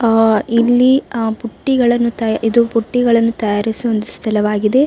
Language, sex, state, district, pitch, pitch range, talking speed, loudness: Kannada, female, Karnataka, Dakshina Kannada, 230 Hz, 220-240 Hz, 125 wpm, -15 LUFS